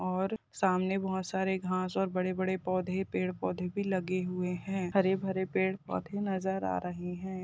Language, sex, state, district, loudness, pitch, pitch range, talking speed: Hindi, female, Rajasthan, Churu, -33 LUFS, 185 Hz, 185-190 Hz, 175 wpm